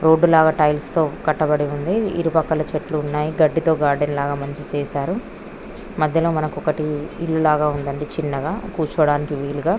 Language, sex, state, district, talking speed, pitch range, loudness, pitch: Telugu, female, Andhra Pradesh, Krishna, 140 wpm, 145-160 Hz, -20 LUFS, 155 Hz